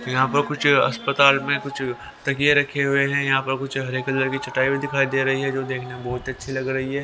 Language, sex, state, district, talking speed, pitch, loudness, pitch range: Hindi, male, Haryana, Rohtak, 255 wpm, 135 Hz, -21 LUFS, 130-140 Hz